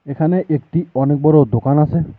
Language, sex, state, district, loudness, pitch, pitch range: Bengali, male, West Bengal, Alipurduar, -15 LUFS, 150 Hz, 140-160 Hz